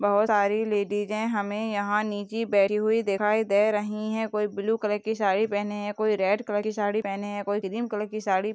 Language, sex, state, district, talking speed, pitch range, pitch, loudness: Hindi, female, Uttar Pradesh, Ghazipur, 225 wpm, 205-215 Hz, 210 Hz, -26 LUFS